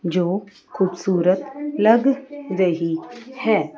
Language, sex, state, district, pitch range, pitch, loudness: Hindi, female, Chandigarh, Chandigarh, 180-260 Hz, 195 Hz, -21 LUFS